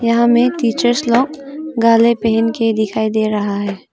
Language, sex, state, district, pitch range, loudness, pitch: Hindi, female, Arunachal Pradesh, Longding, 220-240 Hz, -15 LUFS, 230 Hz